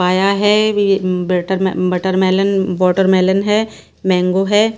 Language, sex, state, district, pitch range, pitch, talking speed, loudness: Hindi, female, Bihar, Katihar, 185-200 Hz, 190 Hz, 100 wpm, -15 LUFS